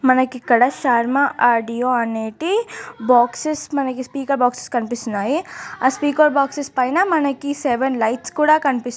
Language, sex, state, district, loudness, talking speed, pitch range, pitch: Telugu, female, Telangana, Nalgonda, -18 LUFS, 125 wpm, 245-290 Hz, 260 Hz